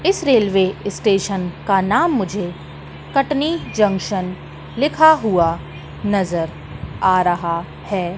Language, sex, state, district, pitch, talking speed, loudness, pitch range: Hindi, female, Madhya Pradesh, Katni, 195 Hz, 105 wpm, -18 LUFS, 180-255 Hz